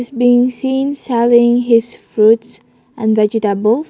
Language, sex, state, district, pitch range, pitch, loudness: English, female, Nagaland, Kohima, 220-245 Hz, 235 Hz, -13 LUFS